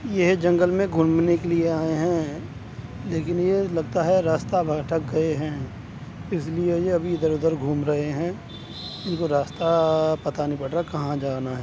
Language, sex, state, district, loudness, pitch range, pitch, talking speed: Hindi, male, Uttar Pradesh, Etah, -23 LUFS, 145-175 Hz, 160 Hz, 170 wpm